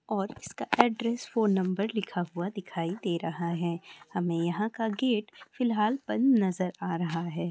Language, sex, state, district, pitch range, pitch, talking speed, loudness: Hindi, female, Jharkhand, Sahebganj, 175-220 Hz, 195 Hz, 170 wpm, -30 LUFS